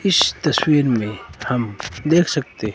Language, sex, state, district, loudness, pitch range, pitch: Hindi, male, Himachal Pradesh, Shimla, -19 LUFS, 105-150 Hz, 125 Hz